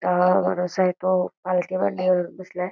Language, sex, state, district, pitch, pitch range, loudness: Marathi, female, Karnataka, Belgaum, 185 Hz, 180-185 Hz, -23 LUFS